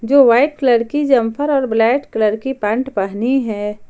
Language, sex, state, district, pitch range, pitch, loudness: Hindi, female, Jharkhand, Ranchi, 220-270 Hz, 240 Hz, -16 LUFS